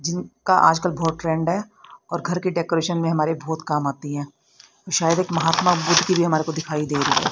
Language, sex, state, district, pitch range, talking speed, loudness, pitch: Hindi, female, Haryana, Rohtak, 155-175 Hz, 215 wpm, -21 LUFS, 165 Hz